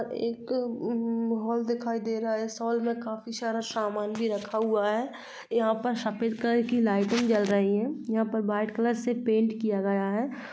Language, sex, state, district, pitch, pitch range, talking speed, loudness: Hindi, female, Bihar, East Champaran, 225 Hz, 220-235 Hz, 200 wpm, -28 LUFS